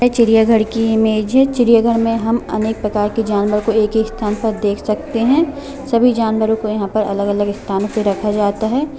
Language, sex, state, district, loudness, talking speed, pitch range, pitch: Hindi, female, Jharkhand, Jamtara, -16 LUFS, 175 wpm, 210-230 Hz, 220 Hz